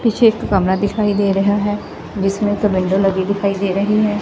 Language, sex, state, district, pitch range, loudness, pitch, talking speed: Punjabi, female, Punjab, Fazilka, 195-210 Hz, -17 LUFS, 200 Hz, 215 wpm